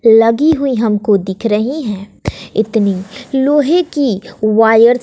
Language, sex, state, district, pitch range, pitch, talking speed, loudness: Hindi, female, Bihar, West Champaran, 210-270 Hz, 225 Hz, 130 wpm, -13 LUFS